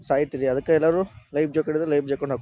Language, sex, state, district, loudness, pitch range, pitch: Kannada, male, Karnataka, Dharwad, -23 LUFS, 135-155 Hz, 145 Hz